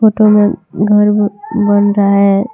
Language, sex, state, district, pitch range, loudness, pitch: Hindi, female, Jharkhand, Deoghar, 205-210 Hz, -11 LUFS, 205 Hz